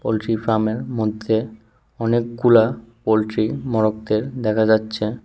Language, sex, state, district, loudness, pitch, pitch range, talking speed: Bengali, male, Tripura, West Tripura, -20 LUFS, 110 Hz, 110-115 Hz, 90 wpm